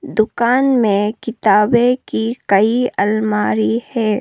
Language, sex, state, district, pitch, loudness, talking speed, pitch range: Hindi, female, Arunachal Pradesh, Lower Dibang Valley, 220 Hz, -16 LUFS, 100 wpm, 210-240 Hz